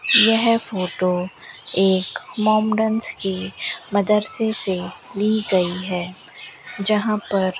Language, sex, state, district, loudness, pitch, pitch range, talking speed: Hindi, female, Rajasthan, Bikaner, -19 LUFS, 200 Hz, 185-220 Hz, 100 wpm